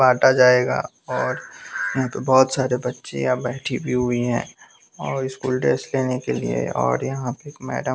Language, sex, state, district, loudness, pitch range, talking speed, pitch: Hindi, male, Bihar, West Champaran, -21 LUFS, 120-130 Hz, 165 wpm, 125 Hz